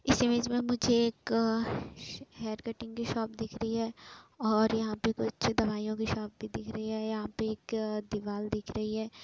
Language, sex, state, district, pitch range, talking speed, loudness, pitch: Hindi, female, Uttar Pradesh, Etah, 215-230 Hz, 210 wpm, -32 LUFS, 220 Hz